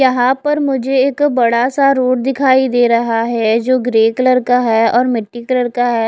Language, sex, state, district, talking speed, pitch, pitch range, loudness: Hindi, female, Odisha, Khordha, 195 wpm, 250 Hz, 235-260 Hz, -13 LUFS